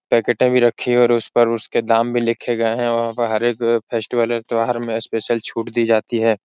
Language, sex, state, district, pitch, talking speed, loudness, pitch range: Hindi, male, Uttar Pradesh, Etah, 115 Hz, 240 wpm, -18 LUFS, 115-120 Hz